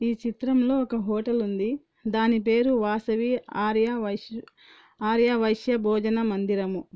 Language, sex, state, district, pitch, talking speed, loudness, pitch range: Telugu, female, Andhra Pradesh, Anantapur, 225 Hz, 110 wpm, -25 LUFS, 215-235 Hz